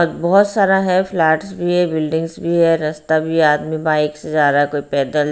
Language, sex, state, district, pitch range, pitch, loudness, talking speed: Hindi, female, Bihar, Patna, 150-175 Hz, 160 Hz, -16 LUFS, 215 wpm